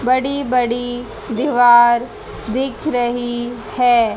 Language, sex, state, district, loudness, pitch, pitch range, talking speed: Hindi, female, Haryana, Jhajjar, -16 LUFS, 245 Hz, 235-250 Hz, 85 wpm